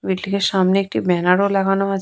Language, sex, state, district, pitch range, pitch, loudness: Bengali, female, West Bengal, Purulia, 185-195 Hz, 195 Hz, -18 LUFS